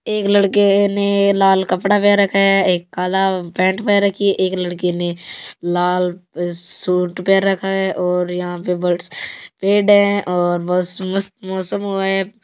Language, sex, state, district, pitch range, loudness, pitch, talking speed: Hindi, female, Rajasthan, Churu, 180-200 Hz, -17 LUFS, 190 Hz, 145 wpm